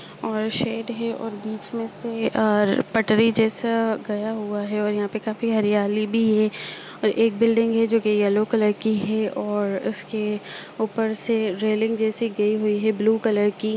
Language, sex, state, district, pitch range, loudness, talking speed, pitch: Hindi, female, Bihar, Jamui, 210-225 Hz, -23 LUFS, 185 wpm, 220 Hz